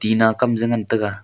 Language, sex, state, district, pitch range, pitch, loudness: Wancho, male, Arunachal Pradesh, Longding, 110-115 Hz, 110 Hz, -19 LUFS